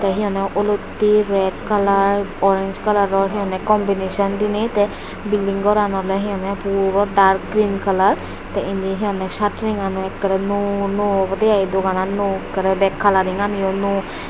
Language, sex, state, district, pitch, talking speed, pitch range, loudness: Chakma, female, Tripura, Dhalai, 200 Hz, 170 wpm, 195-205 Hz, -19 LUFS